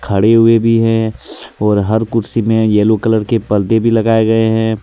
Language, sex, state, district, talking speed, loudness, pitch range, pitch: Hindi, male, Jharkhand, Deoghar, 200 wpm, -13 LUFS, 110-115 Hz, 110 Hz